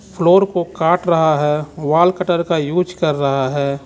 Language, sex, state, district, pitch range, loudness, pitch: Hindi, male, Jharkhand, Ranchi, 150-180 Hz, -16 LUFS, 165 Hz